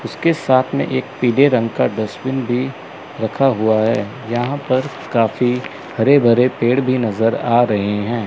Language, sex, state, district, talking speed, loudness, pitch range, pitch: Hindi, male, Chandigarh, Chandigarh, 160 wpm, -17 LUFS, 110-130 Hz, 120 Hz